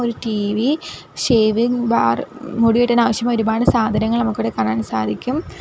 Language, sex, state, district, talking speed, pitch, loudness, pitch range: Malayalam, female, Kerala, Kollam, 130 wpm, 230 Hz, -18 LUFS, 205-240 Hz